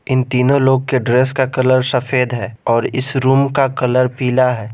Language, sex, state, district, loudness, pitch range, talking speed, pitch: Hindi, male, Jharkhand, Garhwa, -15 LUFS, 125-130 Hz, 205 wpm, 130 Hz